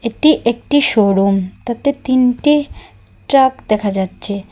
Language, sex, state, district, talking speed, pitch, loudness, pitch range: Bengali, female, Assam, Hailakandi, 105 wpm, 240 Hz, -14 LUFS, 200-280 Hz